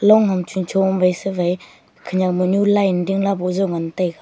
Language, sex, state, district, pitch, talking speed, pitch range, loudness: Wancho, female, Arunachal Pradesh, Longding, 185 Hz, 185 wpm, 180-195 Hz, -19 LUFS